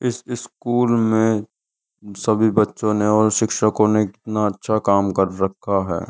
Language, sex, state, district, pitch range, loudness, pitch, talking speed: Hindi, male, Uttar Pradesh, Jyotiba Phule Nagar, 100-110 Hz, -19 LUFS, 110 Hz, 145 wpm